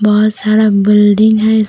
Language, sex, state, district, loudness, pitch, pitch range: Hindi, female, Jharkhand, Deoghar, -10 LUFS, 215 Hz, 210-215 Hz